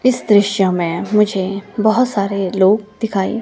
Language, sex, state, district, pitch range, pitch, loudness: Hindi, female, Himachal Pradesh, Shimla, 190-220 Hz, 200 Hz, -16 LUFS